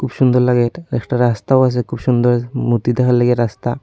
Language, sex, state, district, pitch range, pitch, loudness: Bengali, female, Tripura, Unakoti, 120-125 Hz, 125 Hz, -16 LUFS